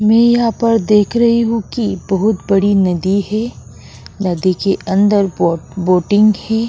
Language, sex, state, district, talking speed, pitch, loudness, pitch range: Hindi, female, Goa, North and South Goa, 150 wpm, 200 Hz, -14 LUFS, 185-225 Hz